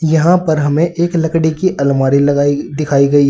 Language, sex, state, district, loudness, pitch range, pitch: Hindi, male, Uttar Pradesh, Saharanpur, -13 LUFS, 140-165 Hz, 155 Hz